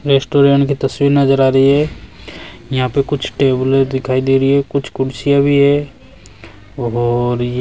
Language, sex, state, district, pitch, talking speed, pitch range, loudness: Hindi, male, Rajasthan, Jaipur, 135 Hz, 165 wpm, 130-140 Hz, -14 LUFS